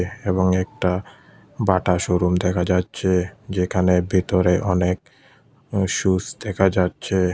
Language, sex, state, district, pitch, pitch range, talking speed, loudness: Bengali, male, Tripura, West Tripura, 90 Hz, 90-100 Hz, 100 wpm, -21 LUFS